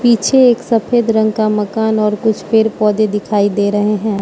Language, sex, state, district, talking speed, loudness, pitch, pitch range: Hindi, female, Manipur, Imphal West, 200 wpm, -14 LUFS, 215 Hz, 210-225 Hz